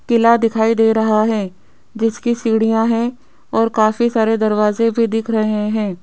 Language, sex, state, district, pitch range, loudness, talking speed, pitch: Hindi, female, Rajasthan, Jaipur, 215-230 Hz, -16 LUFS, 160 wpm, 225 Hz